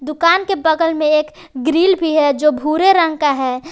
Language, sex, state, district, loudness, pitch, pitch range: Hindi, female, Jharkhand, Palamu, -15 LUFS, 315 Hz, 300-335 Hz